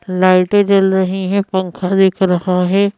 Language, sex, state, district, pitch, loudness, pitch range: Hindi, female, Madhya Pradesh, Bhopal, 190 Hz, -14 LUFS, 185-195 Hz